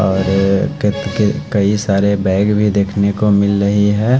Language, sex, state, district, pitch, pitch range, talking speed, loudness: Hindi, male, Haryana, Charkhi Dadri, 100 Hz, 100-105 Hz, 170 wpm, -15 LUFS